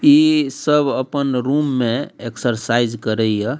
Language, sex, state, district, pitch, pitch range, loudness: Maithili, male, Bihar, Darbhanga, 130 Hz, 115-145 Hz, -18 LUFS